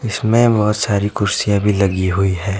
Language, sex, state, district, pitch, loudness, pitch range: Hindi, male, Himachal Pradesh, Shimla, 105 Hz, -16 LUFS, 95-105 Hz